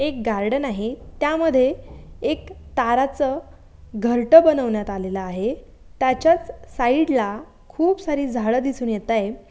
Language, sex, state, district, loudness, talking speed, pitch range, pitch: Marathi, female, Maharashtra, Aurangabad, -21 LUFS, 120 wpm, 225-290 Hz, 255 Hz